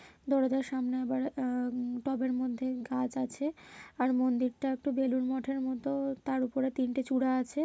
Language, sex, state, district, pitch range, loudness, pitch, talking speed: Bengali, female, West Bengal, Kolkata, 255-270 Hz, -32 LUFS, 260 Hz, 165 wpm